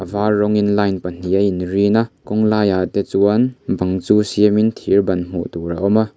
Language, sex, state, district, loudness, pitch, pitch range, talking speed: Mizo, male, Mizoram, Aizawl, -17 LUFS, 100 Hz, 95-105 Hz, 205 wpm